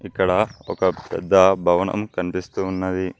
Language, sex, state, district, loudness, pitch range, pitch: Telugu, male, Telangana, Mahabubabad, -21 LUFS, 90-95 Hz, 95 Hz